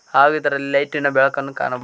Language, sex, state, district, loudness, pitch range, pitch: Kannada, male, Karnataka, Koppal, -18 LUFS, 140-145 Hz, 140 Hz